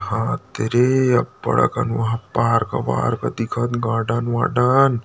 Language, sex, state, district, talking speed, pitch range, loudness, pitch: Chhattisgarhi, male, Chhattisgarh, Rajnandgaon, 120 wpm, 115-125 Hz, -20 LUFS, 115 Hz